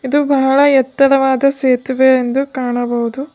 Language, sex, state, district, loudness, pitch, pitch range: Kannada, female, Karnataka, Bidar, -14 LUFS, 265 Hz, 255-275 Hz